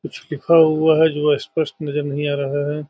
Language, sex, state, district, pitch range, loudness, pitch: Hindi, male, Bihar, Saharsa, 145-160 Hz, -18 LUFS, 150 Hz